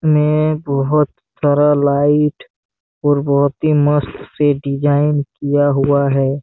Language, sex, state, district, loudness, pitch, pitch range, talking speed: Hindi, male, Chhattisgarh, Bastar, -15 LUFS, 145 Hz, 140-150 Hz, 120 wpm